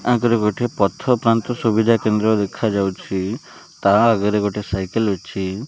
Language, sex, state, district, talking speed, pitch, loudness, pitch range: Odia, male, Odisha, Malkangiri, 135 wpm, 110 Hz, -19 LUFS, 100-115 Hz